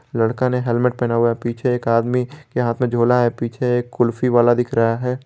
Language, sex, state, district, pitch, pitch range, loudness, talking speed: Hindi, male, Jharkhand, Garhwa, 120 Hz, 120-125 Hz, -19 LUFS, 230 wpm